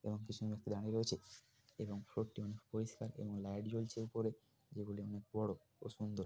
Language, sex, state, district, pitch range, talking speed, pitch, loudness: Bengali, male, West Bengal, Paschim Medinipur, 105-115 Hz, 180 wpm, 110 Hz, -45 LUFS